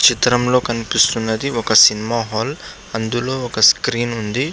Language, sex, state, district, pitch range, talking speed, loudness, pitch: Telugu, male, Andhra Pradesh, Visakhapatnam, 110-125 Hz, 130 wpm, -16 LUFS, 120 Hz